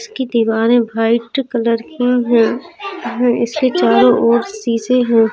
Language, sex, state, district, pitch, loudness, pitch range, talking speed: Hindi, female, Uttar Pradesh, Jalaun, 240 Hz, -15 LUFS, 230-255 Hz, 125 wpm